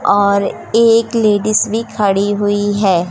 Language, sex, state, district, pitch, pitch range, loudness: Hindi, female, Madhya Pradesh, Umaria, 205 Hz, 200-220 Hz, -14 LUFS